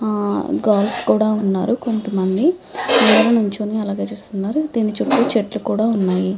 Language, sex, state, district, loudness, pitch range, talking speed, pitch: Telugu, female, Andhra Pradesh, Chittoor, -18 LUFS, 200-230 Hz, 150 wpm, 215 Hz